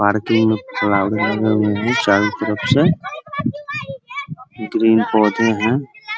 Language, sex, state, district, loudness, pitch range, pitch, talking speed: Hindi, male, Bihar, Muzaffarpur, -17 LUFS, 105-160 Hz, 110 Hz, 80 wpm